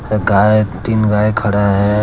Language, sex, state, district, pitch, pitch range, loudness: Hindi, male, Jharkhand, Deoghar, 105 Hz, 100-105 Hz, -14 LUFS